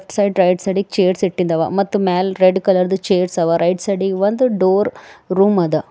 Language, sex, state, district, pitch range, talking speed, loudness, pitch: Kannada, female, Karnataka, Bidar, 180-195 Hz, 195 wpm, -16 LUFS, 190 Hz